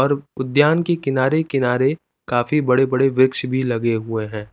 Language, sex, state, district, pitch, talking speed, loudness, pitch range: Hindi, male, Chandigarh, Chandigarh, 130 Hz, 170 wpm, -19 LUFS, 125-140 Hz